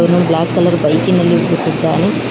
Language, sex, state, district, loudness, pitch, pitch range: Kannada, female, Karnataka, Bangalore, -13 LUFS, 175 Hz, 165-175 Hz